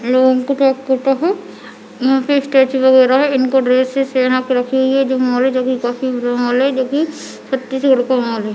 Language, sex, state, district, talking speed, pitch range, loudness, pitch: Hindi, female, Chhattisgarh, Bilaspur, 190 wpm, 255-270 Hz, -15 LUFS, 260 Hz